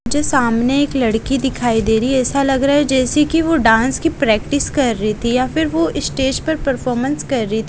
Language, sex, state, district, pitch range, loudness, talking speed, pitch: Hindi, female, Haryana, Jhajjar, 235-285 Hz, -16 LUFS, 235 wpm, 265 Hz